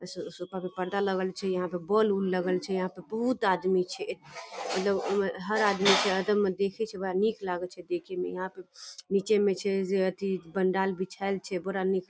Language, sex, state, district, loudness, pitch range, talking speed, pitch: Hindi, female, Bihar, Darbhanga, -29 LUFS, 185-200 Hz, 180 wpm, 190 Hz